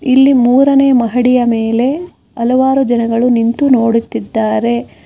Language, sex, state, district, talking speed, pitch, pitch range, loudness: Kannada, female, Karnataka, Bangalore, 95 wpm, 245 Hz, 230-265 Hz, -12 LUFS